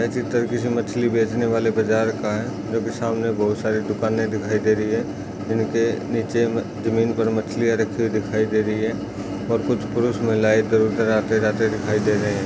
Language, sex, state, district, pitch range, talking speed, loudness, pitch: Hindi, male, Chhattisgarh, Bastar, 105-115 Hz, 200 wpm, -22 LUFS, 110 Hz